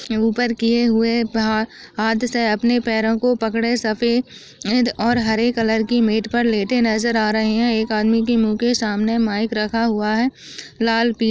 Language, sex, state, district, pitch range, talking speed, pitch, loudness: Hindi, female, Uttar Pradesh, Ghazipur, 220-235 Hz, 195 wpm, 225 Hz, -19 LUFS